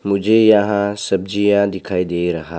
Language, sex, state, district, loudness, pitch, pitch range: Hindi, male, Arunachal Pradesh, Papum Pare, -16 LUFS, 100 Hz, 90-105 Hz